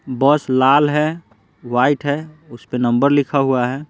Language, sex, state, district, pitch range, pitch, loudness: Hindi, male, Bihar, Patna, 130-150 Hz, 140 Hz, -17 LUFS